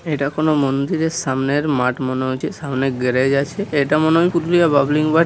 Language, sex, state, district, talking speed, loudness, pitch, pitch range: Bengali, male, West Bengal, Purulia, 195 wpm, -18 LUFS, 145 Hz, 135-160 Hz